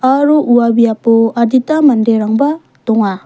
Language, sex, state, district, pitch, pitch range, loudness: Garo, female, Meghalaya, West Garo Hills, 235 Hz, 225-275 Hz, -11 LUFS